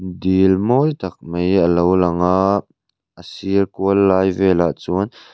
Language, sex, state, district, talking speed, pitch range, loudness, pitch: Mizo, male, Mizoram, Aizawl, 170 wpm, 90-100 Hz, -17 LUFS, 95 Hz